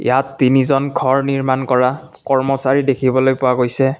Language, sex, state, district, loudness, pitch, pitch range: Assamese, male, Assam, Kamrup Metropolitan, -16 LUFS, 135 Hz, 130-135 Hz